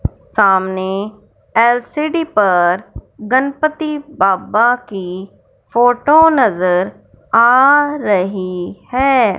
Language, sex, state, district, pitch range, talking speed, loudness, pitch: Hindi, male, Punjab, Fazilka, 190-275 Hz, 70 wpm, -14 LUFS, 225 Hz